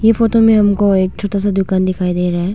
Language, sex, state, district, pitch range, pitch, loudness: Hindi, female, Arunachal Pradesh, Longding, 185-210 Hz, 200 Hz, -14 LUFS